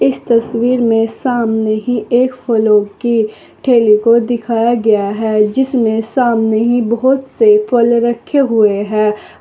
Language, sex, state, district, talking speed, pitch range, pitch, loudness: Hindi, female, Uttar Pradesh, Saharanpur, 135 wpm, 220-245 Hz, 230 Hz, -13 LUFS